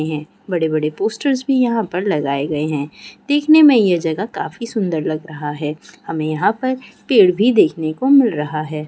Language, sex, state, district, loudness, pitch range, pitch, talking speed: Hindi, female, Chhattisgarh, Korba, -17 LUFS, 155-235 Hz, 175 Hz, 195 wpm